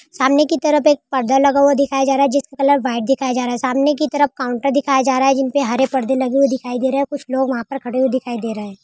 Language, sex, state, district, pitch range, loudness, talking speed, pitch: Hindi, female, Uttar Pradesh, Budaun, 260-280 Hz, -17 LUFS, 310 wpm, 270 Hz